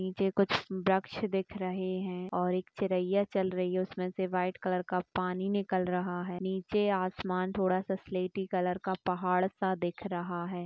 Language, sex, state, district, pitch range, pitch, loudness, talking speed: Hindi, female, Uttar Pradesh, Gorakhpur, 180-190 Hz, 185 Hz, -32 LUFS, 185 wpm